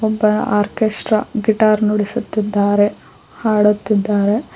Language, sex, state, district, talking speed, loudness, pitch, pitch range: Kannada, female, Karnataka, Koppal, 65 wpm, -16 LUFS, 215 Hz, 205-220 Hz